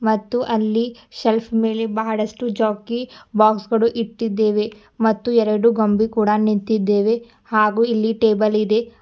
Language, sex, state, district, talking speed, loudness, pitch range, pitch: Kannada, female, Karnataka, Bidar, 120 wpm, -19 LUFS, 215-230 Hz, 220 Hz